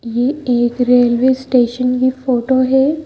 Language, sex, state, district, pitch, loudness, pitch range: Hindi, female, Madhya Pradesh, Bhopal, 250 Hz, -14 LUFS, 245-260 Hz